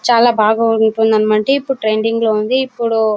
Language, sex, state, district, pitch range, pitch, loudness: Telugu, female, Karnataka, Bellary, 215-235 Hz, 225 Hz, -14 LUFS